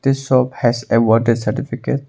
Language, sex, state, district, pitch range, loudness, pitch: English, male, Arunachal Pradesh, Longding, 115-135 Hz, -17 LUFS, 120 Hz